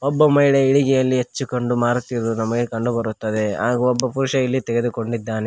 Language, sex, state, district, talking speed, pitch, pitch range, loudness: Kannada, male, Karnataka, Koppal, 145 wpm, 120 Hz, 115-135 Hz, -19 LUFS